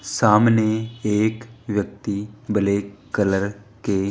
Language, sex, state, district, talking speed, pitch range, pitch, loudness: Hindi, male, Rajasthan, Jaipur, 85 wpm, 100-110 Hz, 105 Hz, -22 LUFS